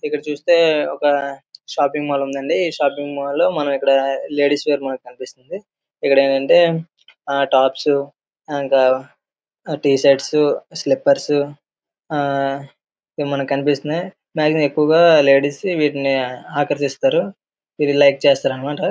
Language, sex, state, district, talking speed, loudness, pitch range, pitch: Telugu, male, Andhra Pradesh, Srikakulam, 115 wpm, -17 LUFS, 140-150 Hz, 145 Hz